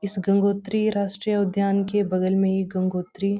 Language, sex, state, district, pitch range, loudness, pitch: Hindi, female, Uttarakhand, Uttarkashi, 190-200 Hz, -23 LUFS, 200 Hz